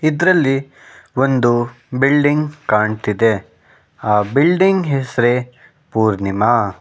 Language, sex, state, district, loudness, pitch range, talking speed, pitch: Kannada, male, Karnataka, Bangalore, -16 LUFS, 110-145 Hz, 70 wpm, 125 Hz